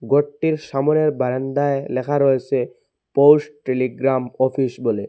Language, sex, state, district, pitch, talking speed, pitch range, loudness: Bengali, male, Assam, Hailakandi, 135 Hz, 105 wpm, 130-145 Hz, -19 LUFS